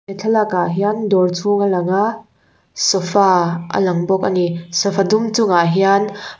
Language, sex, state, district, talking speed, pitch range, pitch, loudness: Mizo, female, Mizoram, Aizawl, 180 wpm, 180-205 Hz, 195 Hz, -16 LUFS